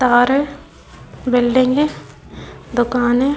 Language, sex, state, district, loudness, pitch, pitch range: Hindi, female, Bihar, Vaishali, -17 LUFS, 255 Hz, 245-275 Hz